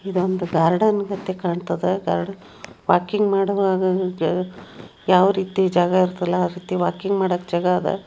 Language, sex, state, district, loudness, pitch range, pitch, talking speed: Kannada, female, Karnataka, Dharwad, -21 LUFS, 180-195 Hz, 185 Hz, 110 wpm